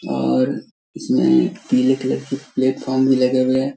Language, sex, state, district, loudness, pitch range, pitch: Hindi, male, Bihar, Darbhanga, -18 LUFS, 125-130 Hz, 130 Hz